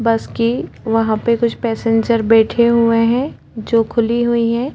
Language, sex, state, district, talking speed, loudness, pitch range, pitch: Hindi, female, Chhattisgarh, Korba, 165 wpm, -16 LUFS, 225-235 Hz, 230 Hz